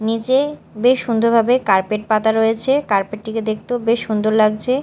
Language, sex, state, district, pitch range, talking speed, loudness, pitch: Bengali, female, Odisha, Malkangiri, 215-245 Hz, 150 wpm, -17 LUFS, 225 Hz